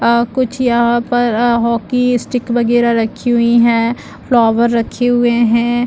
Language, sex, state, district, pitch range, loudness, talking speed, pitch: Hindi, female, Chhattisgarh, Bilaspur, 235-245 Hz, -13 LUFS, 155 wpm, 235 Hz